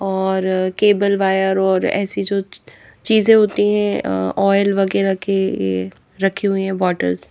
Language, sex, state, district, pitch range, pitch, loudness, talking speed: Hindi, female, Haryana, Jhajjar, 190-200 Hz, 195 Hz, -17 LUFS, 130 wpm